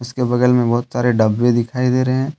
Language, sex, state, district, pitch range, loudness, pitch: Hindi, male, Jharkhand, Deoghar, 120-125 Hz, -16 LUFS, 125 Hz